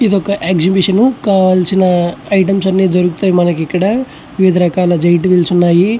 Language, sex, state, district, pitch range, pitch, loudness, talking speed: Telugu, male, Andhra Pradesh, Chittoor, 175-195 Hz, 185 Hz, -12 LUFS, 140 wpm